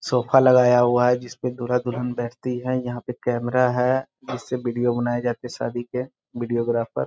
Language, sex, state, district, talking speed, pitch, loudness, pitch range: Hindi, male, Bihar, Sitamarhi, 220 wpm, 125 Hz, -22 LUFS, 120-125 Hz